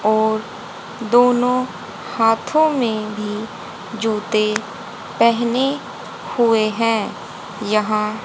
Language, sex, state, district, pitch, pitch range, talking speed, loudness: Hindi, female, Haryana, Jhajjar, 225 Hz, 215-235 Hz, 75 wpm, -19 LUFS